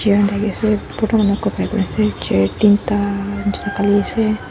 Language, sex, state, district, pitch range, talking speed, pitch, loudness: Nagamese, female, Nagaland, Dimapur, 200-210 Hz, 65 wpm, 205 Hz, -17 LUFS